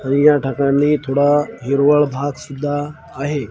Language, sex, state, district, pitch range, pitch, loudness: Marathi, male, Maharashtra, Washim, 140-145 Hz, 145 Hz, -17 LUFS